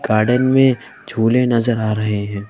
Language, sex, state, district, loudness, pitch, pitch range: Hindi, female, Madhya Pradesh, Bhopal, -16 LUFS, 115 Hz, 110-125 Hz